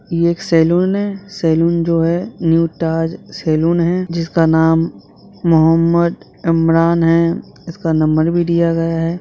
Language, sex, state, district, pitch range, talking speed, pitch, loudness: Hindi, male, Jharkhand, Sahebganj, 165-170 Hz, 150 wpm, 165 Hz, -15 LUFS